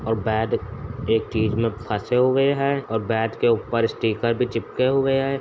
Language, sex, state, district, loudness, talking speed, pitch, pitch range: Hindi, male, Uttar Pradesh, Etah, -22 LUFS, 190 wpm, 115 Hz, 110-130 Hz